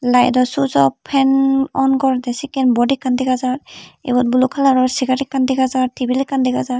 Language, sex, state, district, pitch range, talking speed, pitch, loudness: Chakma, female, Tripura, Unakoti, 250-270 Hz, 185 wpm, 255 Hz, -16 LUFS